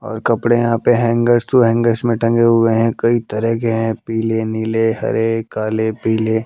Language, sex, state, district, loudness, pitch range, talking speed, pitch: Hindi, male, Haryana, Jhajjar, -16 LUFS, 110-115 Hz, 185 wpm, 115 Hz